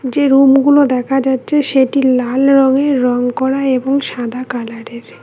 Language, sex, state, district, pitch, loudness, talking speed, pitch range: Bengali, female, West Bengal, Cooch Behar, 265 Hz, -13 LUFS, 160 wpm, 250-275 Hz